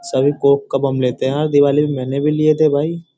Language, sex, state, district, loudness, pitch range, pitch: Hindi, male, Uttar Pradesh, Jyotiba Phule Nagar, -16 LUFS, 135-150 Hz, 145 Hz